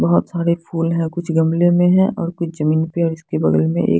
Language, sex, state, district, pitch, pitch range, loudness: Hindi, female, Punjab, Fazilka, 165 Hz, 155-170 Hz, -18 LUFS